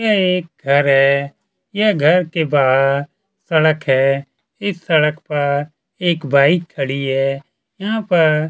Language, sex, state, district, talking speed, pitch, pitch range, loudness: Hindi, male, Chhattisgarh, Kabirdham, 170 wpm, 155 Hz, 140-180 Hz, -16 LUFS